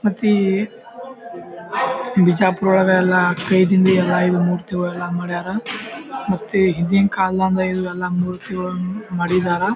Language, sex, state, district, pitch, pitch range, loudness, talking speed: Kannada, male, Karnataka, Bijapur, 185 Hz, 180-205 Hz, -18 LUFS, 90 wpm